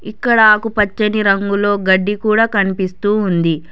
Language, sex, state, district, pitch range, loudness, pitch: Telugu, female, Telangana, Hyderabad, 190-215 Hz, -14 LUFS, 205 Hz